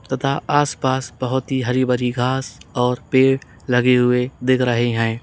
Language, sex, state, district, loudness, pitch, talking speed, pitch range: Hindi, male, Uttar Pradesh, Saharanpur, -19 LUFS, 125 Hz, 170 wpm, 125-130 Hz